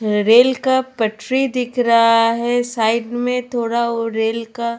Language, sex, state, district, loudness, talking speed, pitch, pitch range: Hindi, female, Goa, North and South Goa, -17 LUFS, 150 wpm, 235 Hz, 230-250 Hz